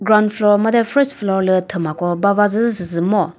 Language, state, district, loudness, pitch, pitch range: Chakhesang, Nagaland, Dimapur, -16 LUFS, 205 Hz, 180-215 Hz